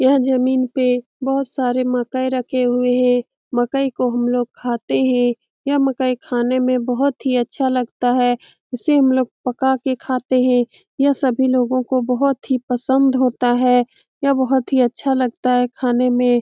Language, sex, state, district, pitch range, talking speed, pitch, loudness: Hindi, female, Bihar, Saran, 245-265 Hz, 180 wpm, 255 Hz, -18 LUFS